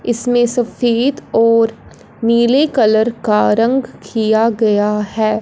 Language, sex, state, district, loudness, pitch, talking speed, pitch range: Hindi, female, Punjab, Fazilka, -14 LUFS, 230 Hz, 110 wpm, 220-240 Hz